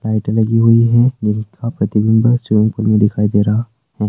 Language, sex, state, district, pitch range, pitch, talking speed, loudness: Hindi, male, Rajasthan, Nagaur, 105-115 Hz, 110 Hz, 190 wpm, -14 LUFS